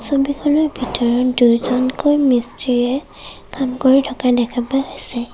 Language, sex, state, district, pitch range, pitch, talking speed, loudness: Assamese, female, Assam, Kamrup Metropolitan, 245-275 Hz, 255 Hz, 100 wpm, -17 LUFS